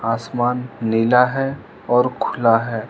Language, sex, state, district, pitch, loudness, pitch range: Hindi, male, Arunachal Pradesh, Lower Dibang Valley, 120 Hz, -19 LUFS, 115-125 Hz